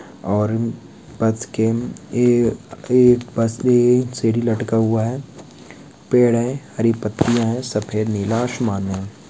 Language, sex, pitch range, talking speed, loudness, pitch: Hindi, male, 110-120 Hz, 60 wpm, -19 LUFS, 115 Hz